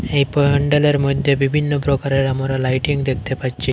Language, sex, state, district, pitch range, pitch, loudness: Bengali, male, Assam, Hailakandi, 135-145 Hz, 140 Hz, -18 LUFS